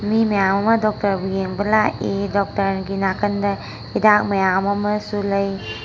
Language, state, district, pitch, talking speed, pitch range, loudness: Manipuri, Manipur, Imphal West, 200 Hz, 125 wpm, 195-210 Hz, -19 LUFS